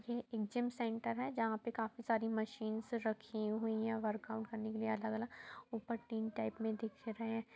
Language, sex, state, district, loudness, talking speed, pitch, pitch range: Hindi, female, Bihar, East Champaran, -41 LUFS, 205 wpm, 225 Hz, 220-230 Hz